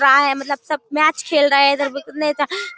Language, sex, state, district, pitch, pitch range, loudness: Hindi, female, Bihar, Darbhanga, 285 Hz, 280-305 Hz, -17 LUFS